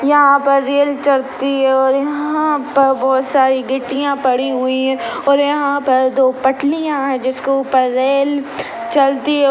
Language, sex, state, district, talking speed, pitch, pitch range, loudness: Hindi, female, Chhattisgarh, Sukma, 160 wpm, 275 Hz, 265-285 Hz, -15 LUFS